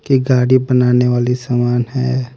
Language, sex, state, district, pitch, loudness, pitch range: Hindi, male, Haryana, Rohtak, 125 Hz, -14 LUFS, 125-130 Hz